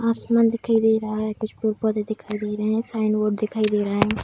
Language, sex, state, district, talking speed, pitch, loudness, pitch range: Hindi, female, Bihar, Darbhanga, 240 wpm, 215 Hz, -22 LUFS, 215-225 Hz